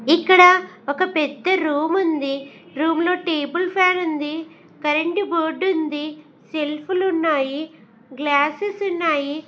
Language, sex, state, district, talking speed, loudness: Telugu, female, Andhra Pradesh, Sri Satya Sai, 115 wpm, -19 LUFS